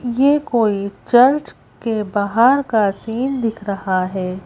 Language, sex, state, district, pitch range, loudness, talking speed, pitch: Hindi, female, Madhya Pradesh, Bhopal, 200-250 Hz, -17 LUFS, 135 wpm, 225 Hz